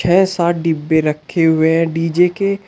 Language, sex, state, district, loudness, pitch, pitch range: Hindi, male, Uttar Pradesh, Shamli, -15 LUFS, 165 Hz, 160-180 Hz